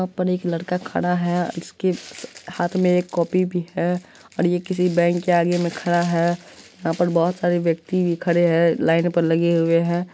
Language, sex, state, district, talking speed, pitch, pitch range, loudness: Maithili, female, Bihar, Supaul, 215 wpm, 175 Hz, 170-180 Hz, -21 LUFS